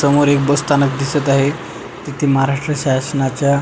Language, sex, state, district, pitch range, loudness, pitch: Marathi, male, Maharashtra, Pune, 140-145 Hz, -16 LUFS, 140 Hz